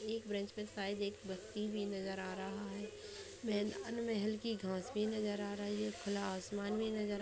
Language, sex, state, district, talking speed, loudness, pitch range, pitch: Hindi, female, Bihar, Saharsa, 200 wpm, -41 LUFS, 200-215 Hz, 205 Hz